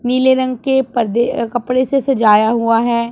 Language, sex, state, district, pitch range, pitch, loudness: Hindi, female, Punjab, Pathankot, 235-260 Hz, 245 Hz, -15 LUFS